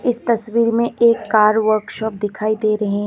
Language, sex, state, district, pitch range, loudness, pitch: Hindi, female, Assam, Kamrup Metropolitan, 215-235 Hz, -17 LUFS, 220 Hz